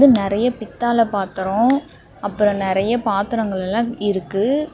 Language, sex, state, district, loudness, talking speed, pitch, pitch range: Tamil, female, Tamil Nadu, Namakkal, -19 LUFS, 100 wpm, 210 Hz, 200-240 Hz